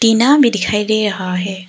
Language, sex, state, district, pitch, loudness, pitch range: Hindi, female, Arunachal Pradesh, Papum Pare, 210 Hz, -14 LUFS, 190-225 Hz